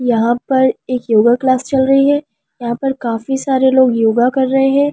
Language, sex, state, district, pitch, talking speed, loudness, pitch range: Hindi, female, Delhi, New Delhi, 260 Hz, 205 wpm, -14 LUFS, 240-270 Hz